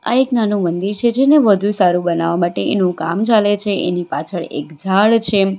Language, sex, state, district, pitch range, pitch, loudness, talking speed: Gujarati, female, Gujarat, Valsad, 175-215 Hz, 195 Hz, -16 LUFS, 205 wpm